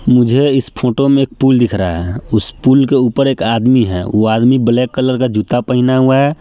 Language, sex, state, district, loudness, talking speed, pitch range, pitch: Hindi, male, Bihar, Sitamarhi, -13 LUFS, 235 wpm, 115-135 Hz, 125 Hz